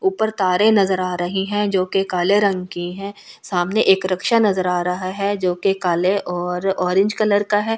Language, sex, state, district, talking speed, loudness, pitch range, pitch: Hindi, female, Delhi, New Delhi, 210 wpm, -19 LUFS, 180-205 Hz, 190 Hz